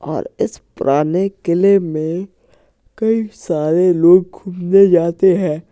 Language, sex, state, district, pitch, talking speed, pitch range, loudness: Hindi, male, Uttar Pradesh, Jalaun, 180 Hz, 115 wpm, 170-195 Hz, -15 LUFS